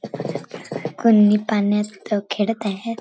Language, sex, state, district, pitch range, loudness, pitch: Marathi, female, Maharashtra, Chandrapur, 205-225 Hz, -20 LUFS, 210 Hz